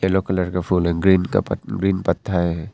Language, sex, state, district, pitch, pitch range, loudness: Hindi, male, Arunachal Pradesh, Papum Pare, 90 Hz, 85-95 Hz, -20 LUFS